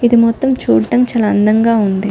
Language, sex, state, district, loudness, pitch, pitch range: Telugu, female, Telangana, Nalgonda, -13 LUFS, 225 Hz, 205-240 Hz